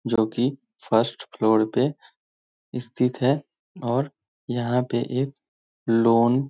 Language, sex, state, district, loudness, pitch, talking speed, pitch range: Hindi, male, Bihar, Muzaffarpur, -24 LUFS, 120 Hz, 120 wpm, 115-130 Hz